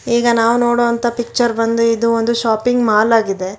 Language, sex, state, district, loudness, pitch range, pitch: Kannada, female, Karnataka, Bangalore, -15 LUFS, 230-240 Hz, 230 Hz